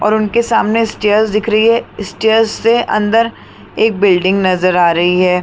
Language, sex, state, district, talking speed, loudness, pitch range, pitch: Hindi, female, Chhattisgarh, Rajnandgaon, 175 wpm, -13 LUFS, 185-225 Hz, 215 Hz